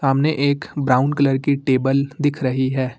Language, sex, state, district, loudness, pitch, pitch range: Hindi, male, Uttar Pradesh, Lucknow, -19 LUFS, 135 Hz, 130-145 Hz